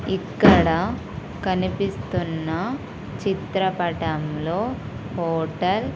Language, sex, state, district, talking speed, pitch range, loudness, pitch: Telugu, female, Andhra Pradesh, Sri Satya Sai, 50 wpm, 160-190 Hz, -23 LUFS, 175 Hz